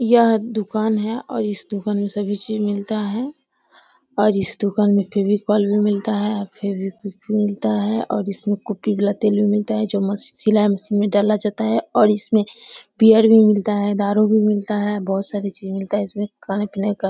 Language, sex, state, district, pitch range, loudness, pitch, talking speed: Hindi, female, Bihar, Samastipur, 205-215 Hz, -19 LUFS, 210 Hz, 205 wpm